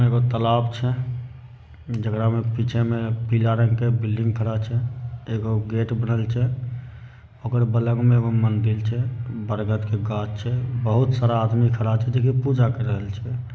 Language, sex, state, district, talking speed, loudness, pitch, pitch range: Angika, male, Bihar, Begusarai, 160 wpm, -23 LUFS, 115 Hz, 110-120 Hz